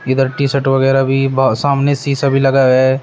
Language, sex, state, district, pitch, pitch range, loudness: Hindi, male, Uttar Pradesh, Shamli, 135 Hz, 135-140 Hz, -13 LUFS